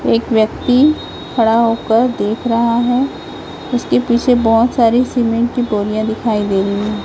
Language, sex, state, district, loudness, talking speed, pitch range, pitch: Hindi, female, Chhattisgarh, Raipur, -15 LUFS, 155 wpm, 220-245 Hz, 230 Hz